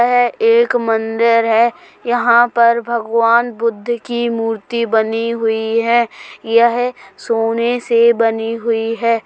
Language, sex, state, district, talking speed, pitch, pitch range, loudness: Hindi, female, Uttar Pradesh, Jalaun, 125 wpm, 230 Hz, 225-240 Hz, -15 LUFS